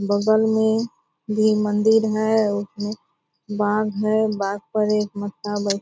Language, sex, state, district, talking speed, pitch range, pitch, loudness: Hindi, female, Bihar, Purnia, 145 wpm, 205-215 Hz, 210 Hz, -21 LUFS